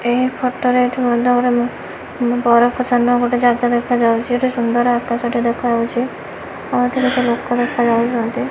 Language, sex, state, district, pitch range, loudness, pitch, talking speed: Odia, female, Odisha, Malkangiri, 235-245 Hz, -16 LUFS, 245 Hz, 135 wpm